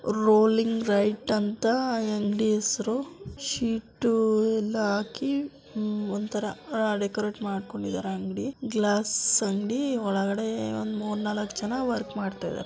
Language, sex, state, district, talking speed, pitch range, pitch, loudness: Kannada, female, Karnataka, Dakshina Kannada, 110 wpm, 205-225 Hz, 215 Hz, -27 LUFS